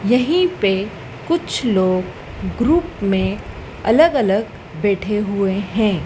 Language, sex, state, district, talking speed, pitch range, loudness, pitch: Hindi, female, Madhya Pradesh, Dhar, 110 wpm, 195-250 Hz, -18 LUFS, 205 Hz